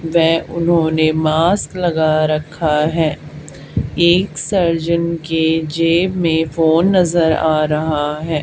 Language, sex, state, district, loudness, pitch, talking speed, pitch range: Hindi, female, Haryana, Charkhi Dadri, -16 LUFS, 160 Hz, 115 wpm, 155-170 Hz